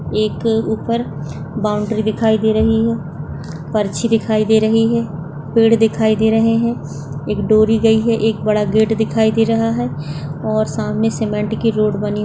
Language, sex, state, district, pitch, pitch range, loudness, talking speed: Hindi, female, Maharashtra, Solapur, 215 Hz, 190-225 Hz, -16 LUFS, 170 wpm